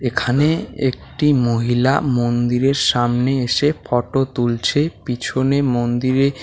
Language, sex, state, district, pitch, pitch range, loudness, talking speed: Bengali, male, West Bengal, Alipurduar, 130 Hz, 120-140 Hz, -18 LUFS, 95 wpm